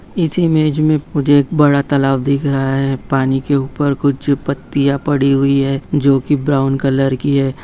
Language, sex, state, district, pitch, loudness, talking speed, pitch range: Hindi, male, West Bengal, Purulia, 140 Hz, -15 LUFS, 195 wpm, 135-145 Hz